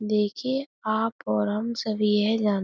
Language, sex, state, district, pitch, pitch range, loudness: Hindi, female, Uttar Pradesh, Budaun, 215 Hz, 210-225 Hz, -26 LUFS